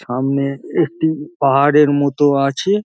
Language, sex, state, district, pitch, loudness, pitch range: Bengali, male, West Bengal, Dakshin Dinajpur, 145 Hz, -16 LUFS, 140-150 Hz